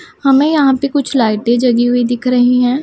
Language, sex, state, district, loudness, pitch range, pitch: Hindi, female, Punjab, Pathankot, -13 LUFS, 245-280 Hz, 250 Hz